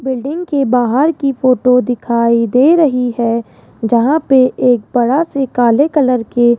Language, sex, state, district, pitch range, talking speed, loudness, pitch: Hindi, female, Rajasthan, Jaipur, 240-275 Hz, 165 wpm, -13 LUFS, 250 Hz